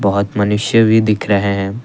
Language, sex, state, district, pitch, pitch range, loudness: Hindi, male, Assam, Kamrup Metropolitan, 105 Hz, 100-110 Hz, -14 LUFS